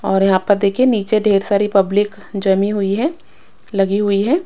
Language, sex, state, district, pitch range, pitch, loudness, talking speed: Hindi, female, Odisha, Sambalpur, 195-210 Hz, 200 Hz, -16 LUFS, 190 wpm